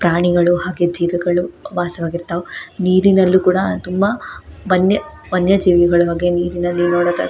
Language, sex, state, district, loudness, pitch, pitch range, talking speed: Kannada, female, Karnataka, Shimoga, -16 LUFS, 175 Hz, 175-185 Hz, 100 wpm